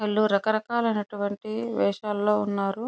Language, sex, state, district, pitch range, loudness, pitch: Telugu, female, Andhra Pradesh, Chittoor, 205-220 Hz, -26 LUFS, 210 Hz